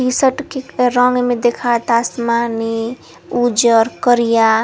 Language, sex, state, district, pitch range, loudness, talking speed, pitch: Bhojpuri, female, Uttar Pradesh, Varanasi, 230-250 Hz, -15 LUFS, 105 wpm, 240 Hz